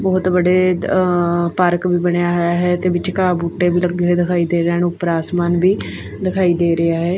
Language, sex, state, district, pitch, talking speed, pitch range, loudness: Punjabi, female, Punjab, Fazilka, 175 Hz, 175 wpm, 175-180 Hz, -16 LUFS